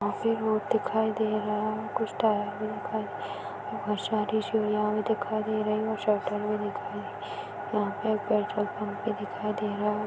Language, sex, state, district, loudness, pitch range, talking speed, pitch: Hindi, female, Chhattisgarh, Jashpur, -30 LUFS, 210-215 Hz, 165 wpm, 210 Hz